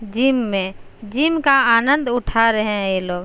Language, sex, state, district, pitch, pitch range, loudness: Hindi, female, Uttar Pradesh, Jalaun, 230 Hz, 205-265 Hz, -17 LUFS